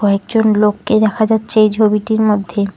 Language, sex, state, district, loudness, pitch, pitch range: Bengali, female, West Bengal, Alipurduar, -13 LUFS, 215 Hz, 205-220 Hz